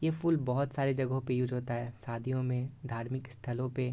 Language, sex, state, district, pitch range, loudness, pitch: Hindi, male, Bihar, East Champaran, 125-135 Hz, -34 LUFS, 130 Hz